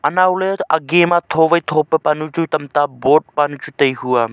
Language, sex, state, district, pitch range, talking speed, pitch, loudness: Wancho, male, Arunachal Pradesh, Longding, 145-170 Hz, 180 wpm, 155 Hz, -16 LUFS